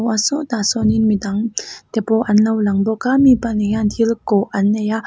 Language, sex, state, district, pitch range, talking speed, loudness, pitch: Mizo, female, Mizoram, Aizawl, 210-230 Hz, 175 wpm, -17 LUFS, 220 Hz